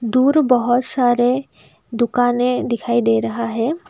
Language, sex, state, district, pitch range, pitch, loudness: Hindi, female, Assam, Kamrup Metropolitan, 230-255 Hz, 245 Hz, -17 LUFS